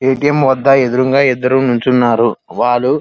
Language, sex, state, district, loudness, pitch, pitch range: Telugu, male, Andhra Pradesh, Krishna, -12 LUFS, 130 Hz, 125-135 Hz